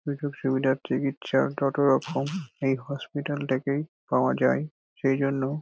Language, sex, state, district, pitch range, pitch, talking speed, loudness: Bengali, male, West Bengal, Dakshin Dinajpur, 135-145 Hz, 140 Hz, 85 wpm, -27 LUFS